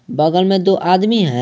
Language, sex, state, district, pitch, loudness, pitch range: Hindi, male, Jharkhand, Garhwa, 185 Hz, -14 LUFS, 170-195 Hz